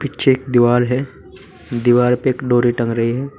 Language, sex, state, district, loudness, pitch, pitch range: Hindi, male, Uttar Pradesh, Saharanpur, -16 LUFS, 125 Hz, 120-130 Hz